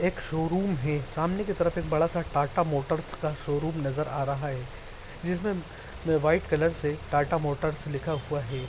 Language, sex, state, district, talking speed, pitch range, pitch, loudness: Hindi, male, Bihar, Araria, 185 wpm, 145-165 Hz, 155 Hz, -28 LUFS